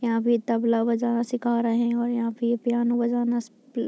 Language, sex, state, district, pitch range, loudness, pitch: Hindi, female, Bihar, Muzaffarpur, 230-240 Hz, -24 LUFS, 235 Hz